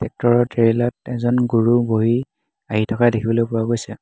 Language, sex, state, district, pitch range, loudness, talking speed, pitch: Assamese, male, Assam, Hailakandi, 115-120 Hz, -19 LUFS, 165 wpm, 115 Hz